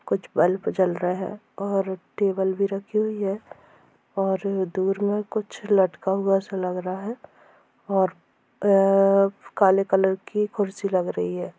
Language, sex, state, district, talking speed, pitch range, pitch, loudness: Hindi, female, Bihar, Purnia, 160 wpm, 190-205 Hz, 195 Hz, -24 LUFS